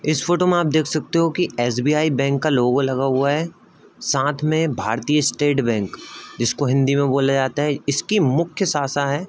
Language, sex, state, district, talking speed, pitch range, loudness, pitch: Hindi, male, Uttar Pradesh, Budaun, 200 wpm, 135-155 Hz, -20 LUFS, 145 Hz